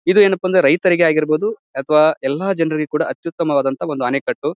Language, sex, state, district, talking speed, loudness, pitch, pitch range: Kannada, male, Karnataka, Bijapur, 145 wpm, -17 LUFS, 160 Hz, 150-185 Hz